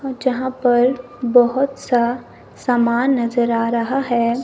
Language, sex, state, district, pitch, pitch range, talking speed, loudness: Hindi, male, Himachal Pradesh, Shimla, 245 Hz, 235-260 Hz, 135 wpm, -18 LUFS